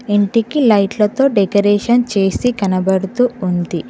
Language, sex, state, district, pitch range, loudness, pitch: Telugu, female, Telangana, Mahabubabad, 190-240 Hz, -15 LUFS, 205 Hz